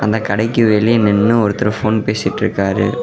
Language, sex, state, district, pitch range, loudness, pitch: Tamil, male, Tamil Nadu, Namakkal, 105-115 Hz, -15 LUFS, 110 Hz